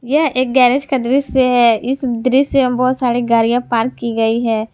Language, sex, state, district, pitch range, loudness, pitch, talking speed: Hindi, female, Jharkhand, Garhwa, 235-265 Hz, -15 LUFS, 250 Hz, 200 wpm